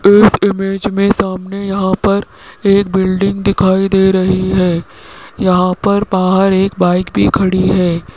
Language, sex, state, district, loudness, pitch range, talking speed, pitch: Hindi, male, Rajasthan, Jaipur, -13 LUFS, 185-200 Hz, 145 wpm, 190 Hz